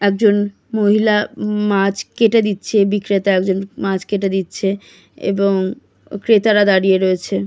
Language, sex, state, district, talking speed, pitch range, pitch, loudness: Bengali, female, West Bengal, Kolkata, 130 wpm, 195-210 Hz, 200 Hz, -16 LUFS